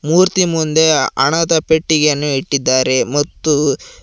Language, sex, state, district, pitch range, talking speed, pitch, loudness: Kannada, male, Karnataka, Koppal, 145-160 Hz, 90 wpm, 155 Hz, -14 LUFS